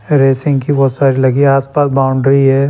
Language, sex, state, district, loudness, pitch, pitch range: Hindi, male, Chandigarh, Chandigarh, -12 LUFS, 135 Hz, 135-140 Hz